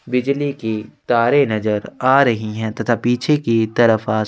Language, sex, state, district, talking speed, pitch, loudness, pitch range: Hindi, male, Chhattisgarh, Sukma, 180 wpm, 115 Hz, -17 LUFS, 110-130 Hz